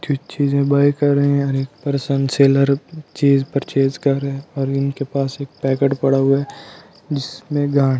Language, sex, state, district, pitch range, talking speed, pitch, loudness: Hindi, male, Delhi, New Delhi, 135-140 Hz, 180 wpm, 140 Hz, -18 LUFS